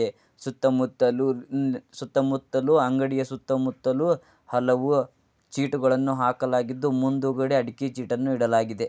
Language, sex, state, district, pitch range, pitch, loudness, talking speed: Kannada, male, Karnataka, Dharwad, 125-135 Hz, 130 Hz, -25 LUFS, 70 wpm